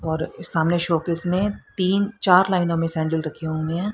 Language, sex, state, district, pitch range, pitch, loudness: Hindi, female, Haryana, Rohtak, 160-185 Hz, 170 Hz, -22 LUFS